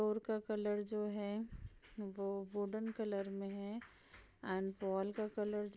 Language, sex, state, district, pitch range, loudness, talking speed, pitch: Hindi, female, Bihar, East Champaran, 200-215 Hz, -42 LUFS, 155 wpm, 210 Hz